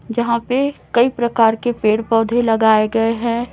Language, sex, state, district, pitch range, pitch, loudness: Hindi, female, Chhattisgarh, Raipur, 225-240 Hz, 235 Hz, -16 LUFS